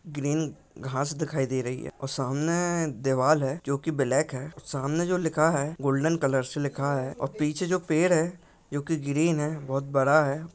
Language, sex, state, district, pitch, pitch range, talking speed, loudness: Hindi, male, Maharashtra, Pune, 145 Hz, 135-160 Hz, 200 wpm, -27 LUFS